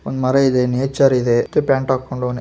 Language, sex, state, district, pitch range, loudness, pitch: Kannada, female, Karnataka, Gulbarga, 125-135 Hz, -17 LUFS, 130 Hz